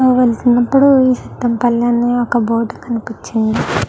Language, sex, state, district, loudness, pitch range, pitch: Telugu, female, Andhra Pradesh, Chittoor, -14 LUFS, 230-250 Hz, 240 Hz